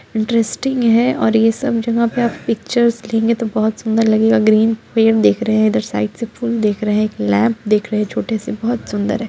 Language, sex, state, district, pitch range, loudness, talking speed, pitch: Hindi, female, Bihar, Muzaffarpur, 215-230 Hz, -16 LUFS, 225 wpm, 225 Hz